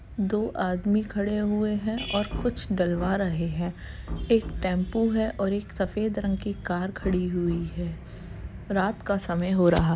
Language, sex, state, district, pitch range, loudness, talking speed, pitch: Hindi, female, Uttar Pradesh, Jalaun, 180-210 Hz, -27 LUFS, 170 wpm, 195 Hz